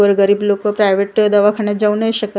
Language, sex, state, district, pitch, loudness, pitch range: Marathi, female, Maharashtra, Gondia, 205 Hz, -14 LUFS, 205-210 Hz